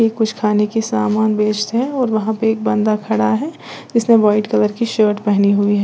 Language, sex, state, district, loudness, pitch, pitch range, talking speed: Hindi, female, Uttar Pradesh, Lalitpur, -16 LUFS, 215 Hz, 210-225 Hz, 215 wpm